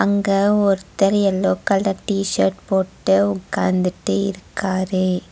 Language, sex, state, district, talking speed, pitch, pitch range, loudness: Tamil, female, Tamil Nadu, Nilgiris, 90 wpm, 190 Hz, 180-195 Hz, -19 LUFS